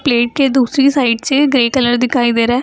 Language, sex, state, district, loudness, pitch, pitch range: Hindi, female, Bihar, Gaya, -13 LUFS, 250 Hz, 240-270 Hz